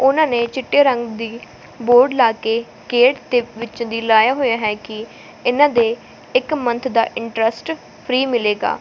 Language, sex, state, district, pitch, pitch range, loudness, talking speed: Punjabi, female, Punjab, Fazilka, 240 Hz, 230-260 Hz, -17 LUFS, 165 wpm